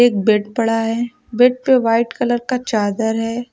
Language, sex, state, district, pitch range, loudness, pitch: Hindi, female, Uttar Pradesh, Lucknow, 225-245 Hz, -17 LUFS, 235 Hz